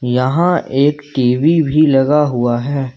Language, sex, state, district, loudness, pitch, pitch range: Hindi, male, Jharkhand, Ranchi, -14 LUFS, 140 Hz, 125-150 Hz